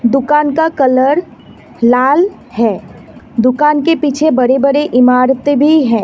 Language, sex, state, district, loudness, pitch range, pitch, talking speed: Hindi, female, Assam, Kamrup Metropolitan, -11 LUFS, 250-300 Hz, 275 Hz, 130 wpm